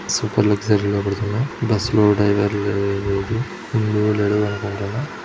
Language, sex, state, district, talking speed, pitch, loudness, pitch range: Telugu, male, Andhra Pradesh, Srikakulam, 125 wpm, 105 Hz, -20 LUFS, 100-110 Hz